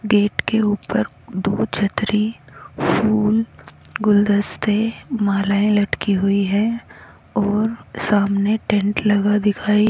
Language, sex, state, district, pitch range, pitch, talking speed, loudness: Hindi, female, Haryana, Rohtak, 200-215 Hz, 210 Hz, 95 wpm, -19 LUFS